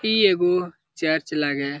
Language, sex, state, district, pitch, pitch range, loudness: Hindi, male, Bihar, Jamui, 165 Hz, 145-180 Hz, -22 LUFS